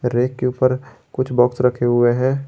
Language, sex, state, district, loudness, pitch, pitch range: Hindi, male, Jharkhand, Garhwa, -18 LUFS, 125 Hz, 125-130 Hz